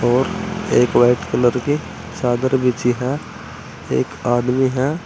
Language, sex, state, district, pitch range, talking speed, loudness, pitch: Hindi, male, Uttar Pradesh, Saharanpur, 120-145 Hz, 130 wpm, -18 LUFS, 125 Hz